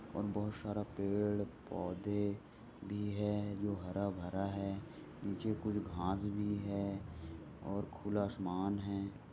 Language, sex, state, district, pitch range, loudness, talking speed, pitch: Hindi, male, Maharashtra, Sindhudurg, 100-105 Hz, -40 LUFS, 115 wpm, 100 Hz